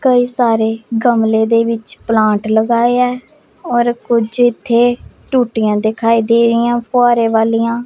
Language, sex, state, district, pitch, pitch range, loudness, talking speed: Punjabi, female, Punjab, Pathankot, 235 Hz, 225-245 Hz, -14 LUFS, 120 wpm